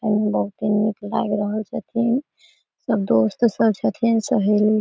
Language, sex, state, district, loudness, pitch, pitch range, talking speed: Maithili, female, Bihar, Samastipur, -21 LUFS, 215 Hz, 210-230 Hz, 135 wpm